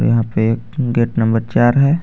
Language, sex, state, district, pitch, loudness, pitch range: Hindi, male, Jharkhand, Garhwa, 115 Hz, -16 LUFS, 115-120 Hz